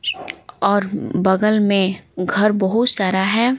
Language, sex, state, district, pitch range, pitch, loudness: Hindi, female, Bihar, Patna, 190-215 Hz, 200 Hz, -18 LUFS